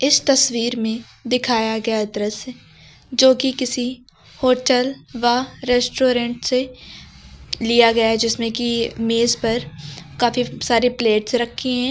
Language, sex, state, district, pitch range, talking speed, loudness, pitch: Hindi, female, Uttar Pradesh, Lucknow, 230-255 Hz, 125 wpm, -19 LUFS, 240 Hz